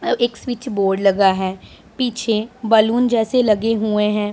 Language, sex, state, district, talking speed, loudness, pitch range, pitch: Hindi, female, Punjab, Pathankot, 150 wpm, -18 LUFS, 205-240 Hz, 220 Hz